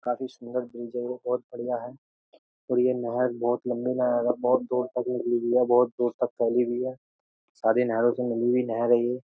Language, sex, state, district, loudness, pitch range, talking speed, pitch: Hindi, male, Uttar Pradesh, Jyotiba Phule Nagar, -26 LUFS, 120-125 Hz, 225 wpm, 125 Hz